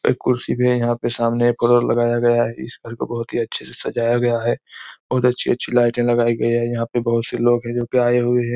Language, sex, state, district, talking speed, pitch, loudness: Hindi, male, Chhattisgarh, Korba, 240 wpm, 120 Hz, -19 LUFS